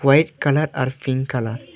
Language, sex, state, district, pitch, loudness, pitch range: Bengali, male, Tripura, Dhalai, 135 Hz, -20 LUFS, 130-140 Hz